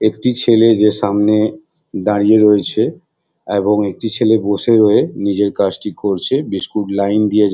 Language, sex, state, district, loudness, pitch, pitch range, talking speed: Bengali, male, West Bengal, Jalpaiguri, -14 LUFS, 105 Hz, 100-110 Hz, 150 wpm